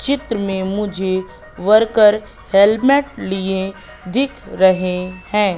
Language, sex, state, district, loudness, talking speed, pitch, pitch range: Hindi, female, Madhya Pradesh, Katni, -17 LUFS, 95 wpm, 200 Hz, 190-220 Hz